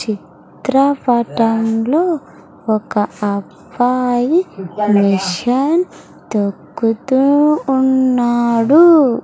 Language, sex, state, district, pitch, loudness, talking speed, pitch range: Telugu, female, Andhra Pradesh, Sri Satya Sai, 245 Hz, -15 LUFS, 40 wpm, 220-275 Hz